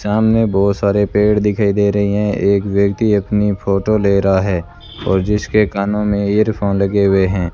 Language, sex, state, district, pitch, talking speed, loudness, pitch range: Hindi, male, Rajasthan, Bikaner, 100 Hz, 185 wpm, -15 LUFS, 100-105 Hz